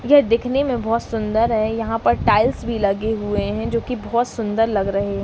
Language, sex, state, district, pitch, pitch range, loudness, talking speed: Hindi, female, Uttar Pradesh, Varanasi, 225 Hz, 210-235 Hz, -20 LUFS, 240 wpm